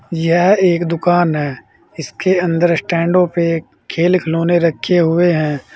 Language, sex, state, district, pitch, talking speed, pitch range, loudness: Hindi, male, Uttar Pradesh, Saharanpur, 170 Hz, 125 wpm, 165-175 Hz, -15 LUFS